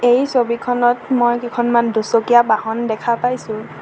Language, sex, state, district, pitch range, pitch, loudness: Assamese, female, Assam, Sonitpur, 230-245 Hz, 240 Hz, -17 LUFS